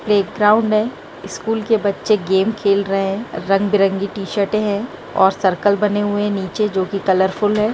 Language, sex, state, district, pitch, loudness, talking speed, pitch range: Hindi, female, Bihar, Jahanabad, 205 Hz, -18 LUFS, 200 wpm, 195-210 Hz